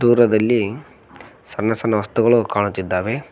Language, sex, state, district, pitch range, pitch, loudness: Kannada, male, Karnataka, Koppal, 105-120 Hz, 110 Hz, -18 LUFS